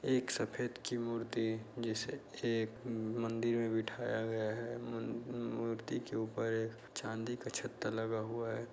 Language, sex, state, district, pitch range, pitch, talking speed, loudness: Hindi, male, Uttar Pradesh, Budaun, 110-120 Hz, 115 Hz, 150 wpm, -39 LUFS